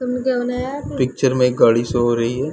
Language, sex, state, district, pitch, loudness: Hindi, male, Chhattisgarh, Bilaspur, 130 Hz, -18 LUFS